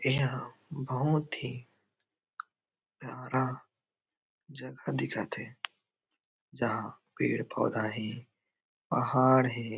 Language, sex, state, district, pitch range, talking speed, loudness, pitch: Chhattisgarhi, male, Chhattisgarh, Raigarh, 120-130 Hz, 75 wpm, -32 LUFS, 130 Hz